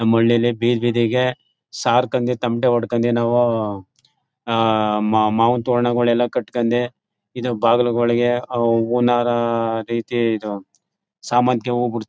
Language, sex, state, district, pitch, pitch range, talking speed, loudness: Kannada, male, Karnataka, Mysore, 120 Hz, 115-120 Hz, 100 wpm, -19 LUFS